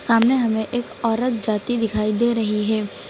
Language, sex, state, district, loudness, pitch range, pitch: Hindi, female, Uttar Pradesh, Lucknow, -21 LUFS, 215-235 Hz, 225 Hz